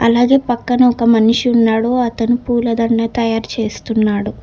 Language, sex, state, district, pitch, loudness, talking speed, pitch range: Telugu, female, Telangana, Hyderabad, 230 Hz, -14 LUFS, 120 wpm, 225-245 Hz